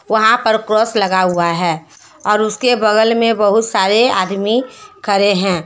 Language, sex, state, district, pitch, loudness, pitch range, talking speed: Hindi, female, Jharkhand, Deoghar, 215 Hz, -14 LUFS, 190-225 Hz, 160 wpm